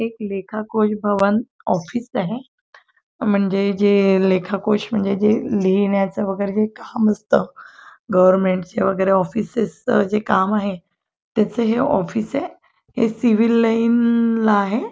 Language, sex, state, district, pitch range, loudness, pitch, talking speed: Marathi, female, Maharashtra, Chandrapur, 195-230 Hz, -19 LUFS, 210 Hz, 135 wpm